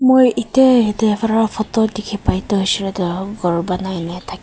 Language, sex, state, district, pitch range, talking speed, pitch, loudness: Nagamese, female, Nagaland, Kohima, 185-225 Hz, 215 wpm, 210 Hz, -17 LUFS